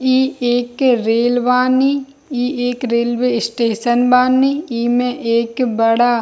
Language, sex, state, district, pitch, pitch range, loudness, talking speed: Hindi, female, Bihar, Darbhanga, 245 Hz, 235-255 Hz, -16 LUFS, 135 wpm